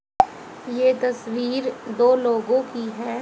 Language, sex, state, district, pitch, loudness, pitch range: Hindi, female, Haryana, Jhajjar, 245 Hz, -22 LUFS, 235-255 Hz